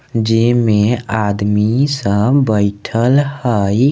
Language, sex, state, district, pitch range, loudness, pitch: Maithili, male, Bihar, Samastipur, 105-130 Hz, -14 LUFS, 115 Hz